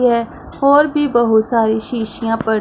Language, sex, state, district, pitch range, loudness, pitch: Hindi, female, Punjab, Pathankot, 225-250 Hz, -15 LUFS, 230 Hz